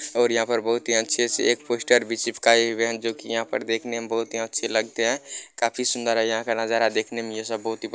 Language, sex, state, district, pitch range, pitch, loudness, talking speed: Maithili, male, Bihar, Purnia, 115-120 Hz, 115 Hz, -23 LUFS, 270 wpm